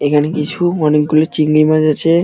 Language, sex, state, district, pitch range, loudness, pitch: Bengali, male, West Bengal, Dakshin Dinajpur, 150-160 Hz, -13 LUFS, 155 Hz